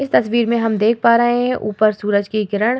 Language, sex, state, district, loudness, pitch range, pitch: Hindi, female, Bihar, Vaishali, -16 LUFS, 210-235 Hz, 225 Hz